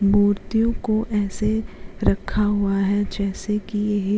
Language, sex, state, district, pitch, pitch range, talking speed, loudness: Hindi, female, Uttarakhand, Uttarkashi, 205 Hz, 200-215 Hz, 145 wpm, -22 LUFS